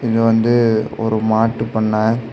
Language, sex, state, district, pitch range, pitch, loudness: Tamil, male, Tamil Nadu, Kanyakumari, 110-115 Hz, 115 Hz, -16 LUFS